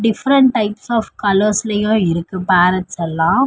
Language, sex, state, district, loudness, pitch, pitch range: Tamil, female, Tamil Nadu, Chennai, -16 LUFS, 205 Hz, 180-225 Hz